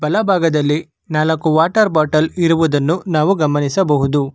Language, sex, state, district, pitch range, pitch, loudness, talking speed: Kannada, male, Karnataka, Bangalore, 150-165 Hz, 155 Hz, -15 LUFS, 110 wpm